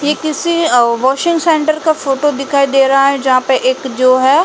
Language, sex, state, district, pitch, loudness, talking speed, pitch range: Hindi, female, Uttar Pradesh, Jalaun, 275 Hz, -12 LUFS, 215 wpm, 260-310 Hz